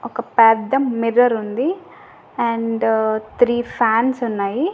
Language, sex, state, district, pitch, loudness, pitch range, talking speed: Telugu, female, Andhra Pradesh, Annamaya, 230 Hz, -18 LUFS, 225-245 Hz, 100 wpm